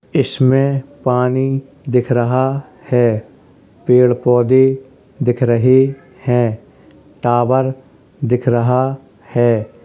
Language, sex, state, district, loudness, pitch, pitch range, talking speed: Hindi, male, Uttar Pradesh, Hamirpur, -15 LUFS, 130 Hz, 120-135 Hz, 85 wpm